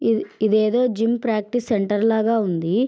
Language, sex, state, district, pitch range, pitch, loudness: Telugu, female, Andhra Pradesh, Srikakulam, 215-230 Hz, 220 Hz, -20 LUFS